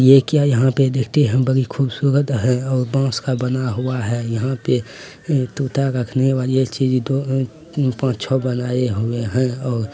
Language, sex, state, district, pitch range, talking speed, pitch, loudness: Maithili, male, Bihar, Araria, 125-135 Hz, 170 wpm, 130 Hz, -19 LUFS